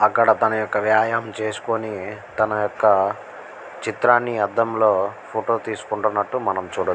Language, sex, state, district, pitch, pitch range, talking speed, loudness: Telugu, male, Andhra Pradesh, Guntur, 110 Hz, 105-115 Hz, 120 wpm, -21 LUFS